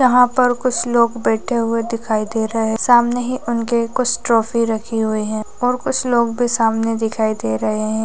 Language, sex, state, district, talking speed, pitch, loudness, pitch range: Hindi, female, Rajasthan, Churu, 200 wpm, 230 Hz, -18 LUFS, 220-240 Hz